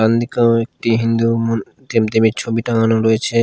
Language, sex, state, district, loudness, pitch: Bengali, male, Odisha, Khordha, -16 LUFS, 115 Hz